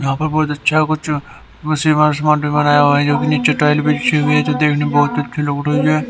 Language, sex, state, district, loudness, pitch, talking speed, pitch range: Hindi, male, Haryana, Rohtak, -15 LUFS, 150 Hz, 225 wpm, 145-150 Hz